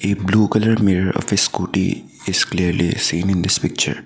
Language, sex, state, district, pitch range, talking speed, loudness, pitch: English, male, Assam, Sonitpur, 90-105 Hz, 190 wpm, -18 LUFS, 95 Hz